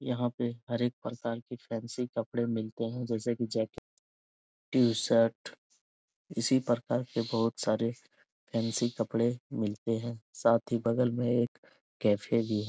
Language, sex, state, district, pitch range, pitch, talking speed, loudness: Hindi, male, Bihar, Jahanabad, 115-120 Hz, 115 Hz, 145 wpm, -31 LUFS